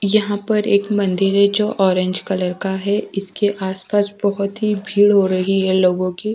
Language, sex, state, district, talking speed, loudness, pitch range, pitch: Hindi, female, Delhi, New Delhi, 190 wpm, -18 LUFS, 190-205 Hz, 200 Hz